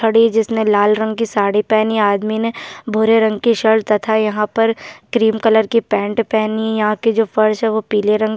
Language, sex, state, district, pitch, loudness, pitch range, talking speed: Hindi, female, Bihar, Kishanganj, 220 Hz, -16 LUFS, 215-225 Hz, 230 wpm